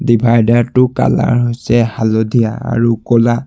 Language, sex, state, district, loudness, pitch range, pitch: Assamese, male, Assam, Sonitpur, -13 LUFS, 115-120 Hz, 120 Hz